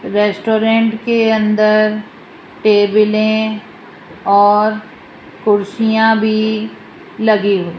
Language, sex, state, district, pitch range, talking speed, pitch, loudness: Hindi, female, Rajasthan, Jaipur, 210-220 Hz, 70 wpm, 215 Hz, -14 LUFS